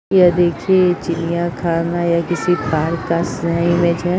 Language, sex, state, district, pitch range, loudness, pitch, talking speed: Hindi, female, Bihar, Purnia, 170-175 Hz, -17 LUFS, 170 Hz, 160 wpm